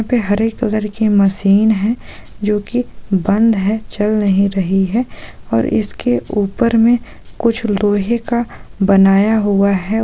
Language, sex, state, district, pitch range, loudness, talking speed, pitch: Hindi, female, Jharkhand, Sahebganj, 200-225 Hz, -15 LUFS, 145 wpm, 210 Hz